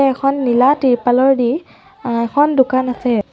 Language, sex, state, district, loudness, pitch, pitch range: Assamese, female, Assam, Sonitpur, -15 LUFS, 255 Hz, 245-275 Hz